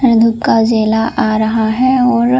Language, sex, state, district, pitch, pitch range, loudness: Hindi, female, Chhattisgarh, Bilaspur, 230 Hz, 220-250 Hz, -12 LUFS